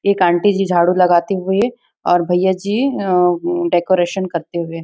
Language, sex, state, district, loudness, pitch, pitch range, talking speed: Hindi, female, Chhattisgarh, Bastar, -16 LUFS, 180 Hz, 175-195 Hz, 175 wpm